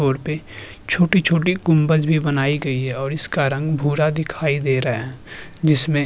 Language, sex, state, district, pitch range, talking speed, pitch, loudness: Hindi, male, Uttarakhand, Tehri Garhwal, 135-155 Hz, 180 wpm, 145 Hz, -19 LUFS